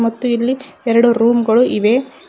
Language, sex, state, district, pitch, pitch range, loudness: Kannada, female, Karnataka, Koppal, 235 Hz, 230-255 Hz, -14 LUFS